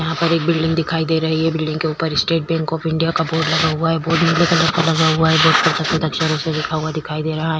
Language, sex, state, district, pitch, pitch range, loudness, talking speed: Hindi, female, Bihar, Vaishali, 160 Hz, 160-165 Hz, -17 LUFS, 300 wpm